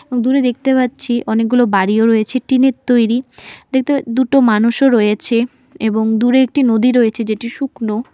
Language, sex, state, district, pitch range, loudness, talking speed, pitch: Bengali, female, West Bengal, Alipurduar, 225-260 Hz, -14 LUFS, 145 wpm, 245 Hz